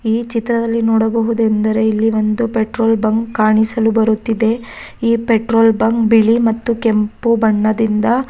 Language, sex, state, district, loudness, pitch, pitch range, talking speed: Kannada, female, Karnataka, Raichur, -15 LUFS, 225 Hz, 220-230 Hz, 50 wpm